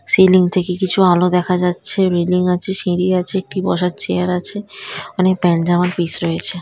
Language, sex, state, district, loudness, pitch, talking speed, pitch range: Bengali, female, West Bengal, Dakshin Dinajpur, -16 LUFS, 180 Hz, 190 wpm, 175-185 Hz